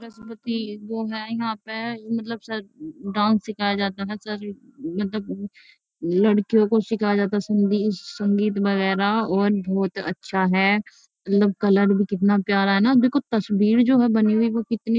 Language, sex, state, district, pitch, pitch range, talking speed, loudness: Hindi, female, Uttar Pradesh, Jyotiba Phule Nagar, 210 Hz, 200-225 Hz, 150 wpm, -22 LUFS